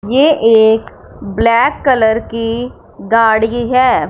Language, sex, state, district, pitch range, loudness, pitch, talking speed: Hindi, female, Punjab, Fazilka, 220-245 Hz, -12 LUFS, 230 Hz, 100 wpm